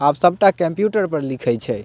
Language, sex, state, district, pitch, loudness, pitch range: Maithili, male, Bihar, Purnia, 170 Hz, -18 LUFS, 140-195 Hz